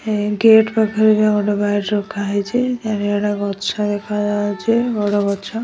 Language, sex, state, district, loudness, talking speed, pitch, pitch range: Odia, male, Odisha, Nuapada, -17 LUFS, 105 wpm, 210 Hz, 205-220 Hz